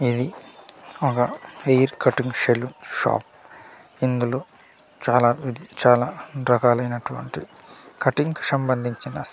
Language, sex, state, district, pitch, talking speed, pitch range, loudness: Telugu, male, Andhra Pradesh, Manyam, 130 Hz, 85 wpm, 120-135 Hz, -22 LUFS